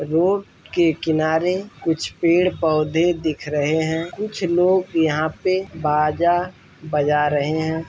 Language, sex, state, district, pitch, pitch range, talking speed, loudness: Hindi, male, Bihar, Saran, 160 Hz, 155-175 Hz, 130 wpm, -20 LUFS